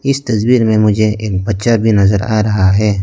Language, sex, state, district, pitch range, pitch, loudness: Hindi, male, Arunachal Pradesh, Lower Dibang Valley, 100-110 Hz, 110 Hz, -13 LUFS